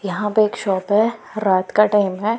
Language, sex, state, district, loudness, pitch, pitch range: Hindi, female, Punjab, Pathankot, -18 LUFS, 210 Hz, 195-215 Hz